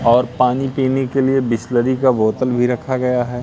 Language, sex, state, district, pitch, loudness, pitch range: Hindi, male, Madhya Pradesh, Katni, 125 Hz, -17 LUFS, 125-130 Hz